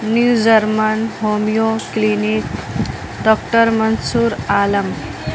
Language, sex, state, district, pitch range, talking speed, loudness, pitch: Hindi, female, Bihar, West Champaran, 210-225 Hz, 80 wpm, -16 LUFS, 220 Hz